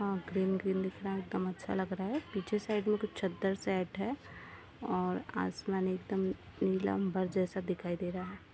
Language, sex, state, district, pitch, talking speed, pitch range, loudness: Hindi, female, Jharkhand, Jamtara, 190 Hz, 205 wpm, 180-195 Hz, -35 LUFS